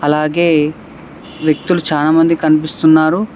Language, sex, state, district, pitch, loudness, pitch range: Telugu, male, Telangana, Hyderabad, 155 Hz, -13 LUFS, 155-165 Hz